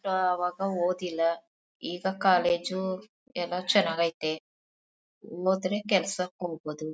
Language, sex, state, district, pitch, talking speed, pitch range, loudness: Kannada, female, Karnataka, Mysore, 180 Hz, 85 wpm, 175-190 Hz, -28 LUFS